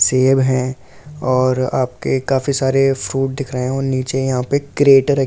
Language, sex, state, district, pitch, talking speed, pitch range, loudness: Hindi, male, Delhi, New Delhi, 135 Hz, 215 wpm, 130-135 Hz, -17 LUFS